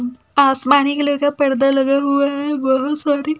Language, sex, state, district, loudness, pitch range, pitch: Hindi, female, Haryana, Charkhi Dadri, -16 LUFS, 270-290 Hz, 280 Hz